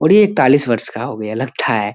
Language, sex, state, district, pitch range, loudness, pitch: Hindi, male, Bihar, Jamui, 110-145 Hz, -15 LUFS, 120 Hz